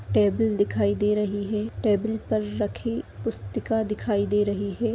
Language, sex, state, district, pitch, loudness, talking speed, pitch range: Hindi, female, Chhattisgarh, Sarguja, 210 Hz, -25 LUFS, 160 wpm, 200-220 Hz